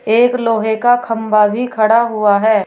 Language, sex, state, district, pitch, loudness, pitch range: Hindi, female, Uttar Pradesh, Shamli, 225 Hz, -13 LUFS, 215-235 Hz